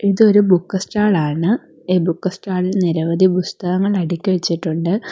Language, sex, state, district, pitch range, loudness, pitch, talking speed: Malayalam, female, Kerala, Kollam, 170-195 Hz, -17 LUFS, 185 Hz, 130 wpm